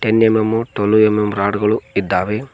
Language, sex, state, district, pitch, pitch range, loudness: Kannada, male, Karnataka, Koppal, 110 Hz, 105-110 Hz, -16 LUFS